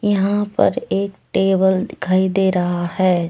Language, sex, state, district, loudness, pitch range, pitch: Hindi, female, Jharkhand, Deoghar, -18 LUFS, 185-195 Hz, 190 Hz